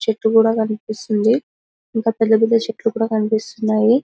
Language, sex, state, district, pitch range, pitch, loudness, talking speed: Telugu, female, Telangana, Karimnagar, 220-225 Hz, 225 Hz, -18 LUFS, 120 wpm